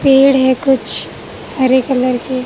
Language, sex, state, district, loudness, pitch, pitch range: Hindi, female, Maharashtra, Mumbai Suburban, -13 LUFS, 260 Hz, 255-270 Hz